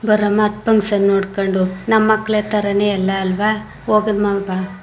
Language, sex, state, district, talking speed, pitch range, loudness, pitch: Kannada, female, Karnataka, Mysore, 125 wpm, 195-215 Hz, -17 LUFS, 205 Hz